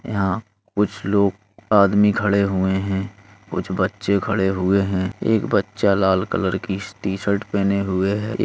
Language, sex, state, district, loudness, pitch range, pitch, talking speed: Hindi, male, Uttar Pradesh, Gorakhpur, -20 LUFS, 95-105 Hz, 100 Hz, 165 wpm